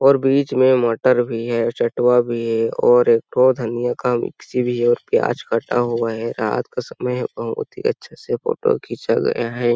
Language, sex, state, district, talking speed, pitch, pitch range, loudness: Hindi, male, Chhattisgarh, Sarguja, 195 wpm, 120 Hz, 120-130 Hz, -19 LUFS